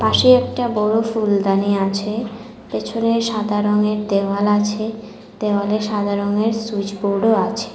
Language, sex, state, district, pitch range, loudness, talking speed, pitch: Bengali, female, Tripura, West Tripura, 205-225 Hz, -19 LUFS, 125 wpm, 210 Hz